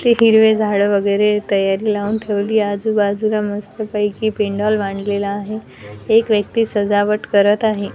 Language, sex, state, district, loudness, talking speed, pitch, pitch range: Marathi, female, Maharashtra, Washim, -17 LUFS, 130 wpm, 210 Hz, 200-215 Hz